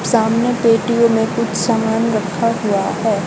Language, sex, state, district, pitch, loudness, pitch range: Hindi, female, Haryana, Charkhi Dadri, 225 Hz, -16 LUFS, 220-230 Hz